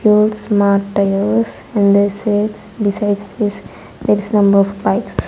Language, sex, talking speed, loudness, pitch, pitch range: English, female, 150 wpm, -15 LUFS, 205 Hz, 200-210 Hz